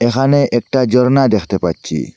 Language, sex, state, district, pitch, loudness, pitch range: Bengali, male, Assam, Hailakandi, 125 Hz, -14 LUFS, 110-135 Hz